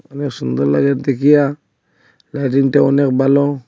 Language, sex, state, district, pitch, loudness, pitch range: Bengali, male, Assam, Hailakandi, 140 Hz, -15 LUFS, 130-145 Hz